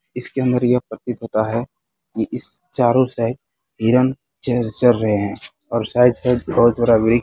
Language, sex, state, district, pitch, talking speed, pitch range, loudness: Hindi, male, Bihar, Muzaffarpur, 120 Hz, 140 wpm, 115-125 Hz, -19 LUFS